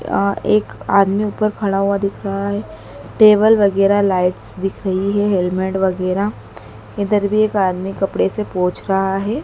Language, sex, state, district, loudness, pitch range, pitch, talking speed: Hindi, female, Madhya Pradesh, Dhar, -17 LUFS, 185-205 Hz, 195 Hz, 165 wpm